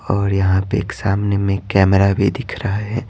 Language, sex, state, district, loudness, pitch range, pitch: Hindi, male, Bihar, Patna, -17 LUFS, 95-100 Hz, 100 Hz